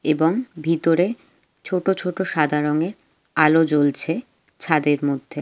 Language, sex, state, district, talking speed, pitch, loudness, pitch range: Bengali, female, West Bengal, Jalpaiguri, 110 wpm, 160 Hz, -20 LUFS, 150-180 Hz